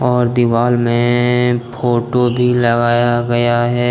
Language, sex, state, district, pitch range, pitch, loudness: Hindi, male, Jharkhand, Deoghar, 120-125 Hz, 120 Hz, -14 LUFS